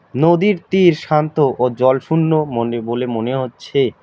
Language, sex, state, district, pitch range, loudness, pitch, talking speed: Bengali, male, West Bengal, Alipurduar, 125-160 Hz, -16 LUFS, 135 Hz, 135 wpm